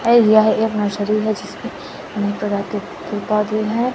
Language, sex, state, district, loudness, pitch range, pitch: Hindi, female, Chhattisgarh, Raipur, -18 LUFS, 205-215 Hz, 215 Hz